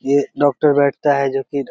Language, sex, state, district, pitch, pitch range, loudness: Maithili, male, Bihar, Begusarai, 140 Hz, 140-145 Hz, -17 LUFS